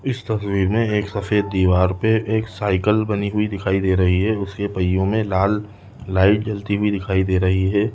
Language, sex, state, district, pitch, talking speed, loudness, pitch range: Hindi, male, Chhattisgarh, Balrampur, 100 Hz, 190 wpm, -20 LUFS, 95-105 Hz